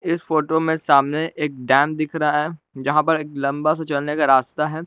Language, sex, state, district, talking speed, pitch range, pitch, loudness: Hindi, male, Jharkhand, Palamu, 220 wpm, 140-160 Hz, 150 Hz, -20 LUFS